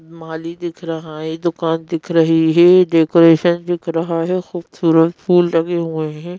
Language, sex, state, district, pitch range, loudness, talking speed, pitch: Hindi, female, Madhya Pradesh, Bhopal, 165-175 Hz, -16 LUFS, 160 wpm, 165 Hz